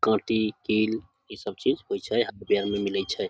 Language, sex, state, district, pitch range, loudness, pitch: Maithili, male, Bihar, Samastipur, 100-110 Hz, -27 LUFS, 105 Hz